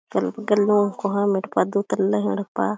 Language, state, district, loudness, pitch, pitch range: Kurukh, Chhattisgarh, Jashpur, -22 LUFS, 200 Hz, 190-210 Hz